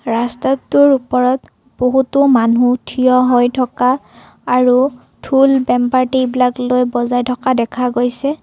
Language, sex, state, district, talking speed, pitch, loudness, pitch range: Assamese, female, Assam, Kamrup Metropolitan, 120 wpm, 250 Hz, -14 LUFS, 245-260 Hz